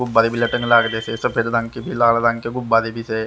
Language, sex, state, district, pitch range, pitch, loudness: Hindi, male, Haryana, Rohtak, 115-120 Hz, 115 Hz, -18 LUFS